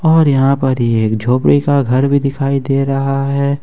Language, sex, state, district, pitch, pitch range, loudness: Hindi, male, Jharkhand, Ranchi, 135 Hz, 130-140 Hz, -14 LUFS